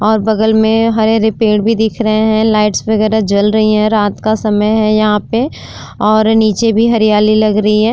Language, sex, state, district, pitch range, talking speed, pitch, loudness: Hindi, female, Uttar Pradesh, Jyotiba Phule Nagar, 215-220 Hz, 205 wpm, 215 Hz, -11 LUFS